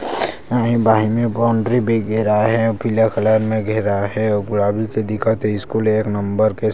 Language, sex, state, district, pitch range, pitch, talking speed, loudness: Chhattisgarhi, male, Chhattisgarh, Sarguja, 105-110 Hz, 110 Hz, 170 wpm, -18 LUFS